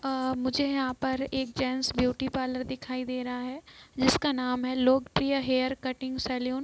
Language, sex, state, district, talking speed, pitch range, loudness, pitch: Hindi, female, Bihar, East Champaran, 180 wpm, 255-265 Hz, -29 LUFS, 260 Hz